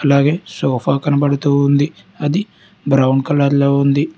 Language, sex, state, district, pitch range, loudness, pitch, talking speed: Telugu, male, Telangana, Hyderabad, 140-145 Hz, -15 LUFS, 140 Hz, 115 wpm